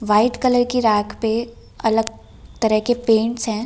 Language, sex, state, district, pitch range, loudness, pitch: Hindi, female, Delhi, New Delhi, 220-240 Hz, -19 LUFS, 225 Hz